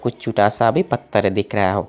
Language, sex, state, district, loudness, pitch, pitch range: Hindi, male, Assam, Hailakandi, -19 LUFS, 110 Hz, 100-120 Hz